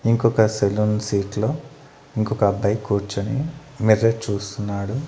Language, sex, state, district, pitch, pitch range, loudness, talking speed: Telugu, male, Andhra Pradesh, Annamaya, 110 Hz, 100-135 Hz, -22 LUFS, 95 wpm